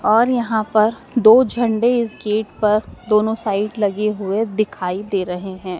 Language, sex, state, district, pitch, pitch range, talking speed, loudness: Hindi, female, Madhya Pradesh, Dhar, 215 Hz, 200-225 Hz, 165 wpm, -18 LUFS